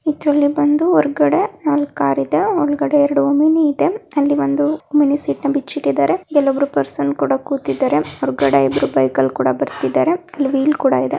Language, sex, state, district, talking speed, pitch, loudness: Kannada, female, Karnataka, Dharwad, 160 wpm, 290 Hz, -16 LUFS